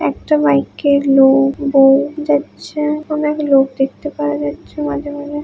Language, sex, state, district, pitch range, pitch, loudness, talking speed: Bengali, female, West Bengal, Dakshin Dinajpur, 270-295 Hz, 280 Hz, -15 LUFS, 130 wpm